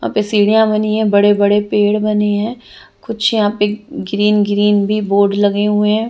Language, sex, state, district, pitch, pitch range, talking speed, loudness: Hindi, female, Chandigarh, Chandigarh, 210 Hz, 205-215 Hz, 195 wpm, -14 LUFS